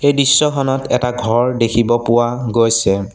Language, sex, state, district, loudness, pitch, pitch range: Assamese, male, Assam, Sonitpur, -15 LUFS, 120 Hz, 115-130 Hz